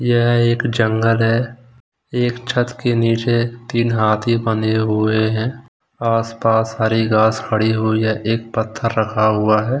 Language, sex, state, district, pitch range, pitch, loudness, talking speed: Hindi, male, Odisha, Khordha, 110-120 Hz, 115 Hz, -17 LUFS, 145 wpm